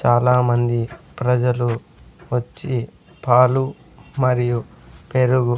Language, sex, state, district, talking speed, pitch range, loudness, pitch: Telugu, male, Andhra Pradesh, Sri Satya Sai, 75 wpm, 120-130 Hz, -20 LUFS, 125 Hz